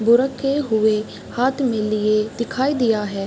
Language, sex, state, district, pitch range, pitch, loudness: Hindi, female, Uttar Pradesh, Varanasi, 215-260 Hz, 230 Hz, -20 LUFS